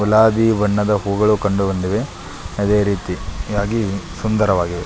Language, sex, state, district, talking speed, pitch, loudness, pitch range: Kannada, male, Karnataka, Belgaum, 85 wpm, 105 Hz, -18 LUFS, 95-105 Hz